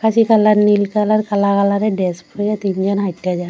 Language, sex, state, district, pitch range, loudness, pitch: Bengali, female, Assam, Hailakandi, 195-215 Hz, -16 LUFS, 200 Hz